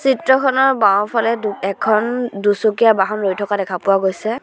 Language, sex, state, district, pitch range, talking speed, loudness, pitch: Assamese, female, Assam, Sonitpur, 200-235 Hz, 150 wpm, -16 LUFS, 215 Hz